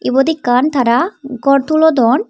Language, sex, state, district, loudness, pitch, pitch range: Chakma, female, Tripura, Dhalai, -13 LUFS, 275 Hz, 245-310 Hz